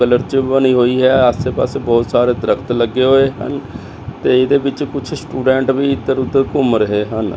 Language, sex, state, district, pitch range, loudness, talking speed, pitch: Punjabi, male, Chandigarh, Chandigarh, 120-135 Hz, -15 LUFS, 180 wpm, 130 Hz